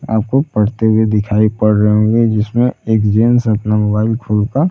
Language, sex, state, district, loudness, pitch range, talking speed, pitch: Hindi, male, Bihar, Saran, -14 LUFS, 105-115 Hz, 180 wpm, 110 Hz